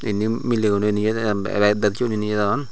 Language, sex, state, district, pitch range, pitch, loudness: Chakma, male, Tripura, Unakoti, 105-115 Hz, 105 Hz, -21 LUFS